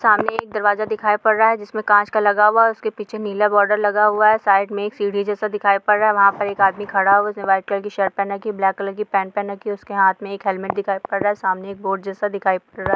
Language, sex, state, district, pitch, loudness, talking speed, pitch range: Hindi, female, Bihar, Vaishali, 205 Hz, -19 LUFS, 305 wpm, 195-210 Hz